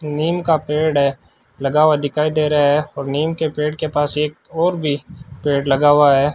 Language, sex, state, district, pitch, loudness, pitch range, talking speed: Hindi, male, Rajasthan, Bikaner, 150 Hz, -17 LUFS, 145-155 Hz, 215 wpm